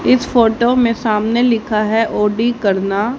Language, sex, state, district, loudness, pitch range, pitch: Hindi, female, Haryana, Jhajjar, -15 LUFS, 210-240 Hz, 225 Hz